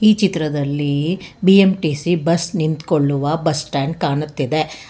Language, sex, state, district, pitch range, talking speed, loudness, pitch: Kannada, female, Karnataka, Bangalore, 145-175 Hz, 100 wpm, -18 LUFS, 155 Hz